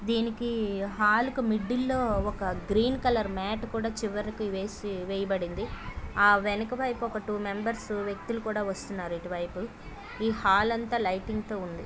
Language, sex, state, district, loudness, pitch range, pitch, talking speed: Telugu, female, Andhra Pradesh, Krishna, -29 LUFS, 195-230 Hz, 210 Hz, 140 wpm